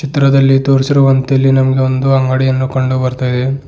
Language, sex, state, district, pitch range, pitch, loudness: Kannada, male, Karnataka, Bidar, 130-135 Hz, 135 Hz, -12 LUFS